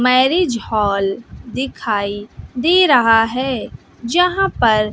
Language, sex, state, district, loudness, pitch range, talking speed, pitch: Hindi, female, Bihar, West Champaran, -16 LUFS, 215-275 Hz, 95 wpm, 240 Hz